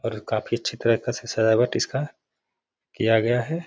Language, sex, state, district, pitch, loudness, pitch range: Hindi, male, Bihar, Gaya, 115 Hz, -23 LUFS, 110-120 Hz